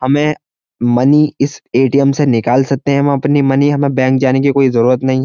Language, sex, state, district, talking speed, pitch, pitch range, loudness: Hindi, male, Uttar Pradesh, Jyotiba Phule Nagar, 215 wpm, 135 Hz, 130-140 Hz, -13 LUFS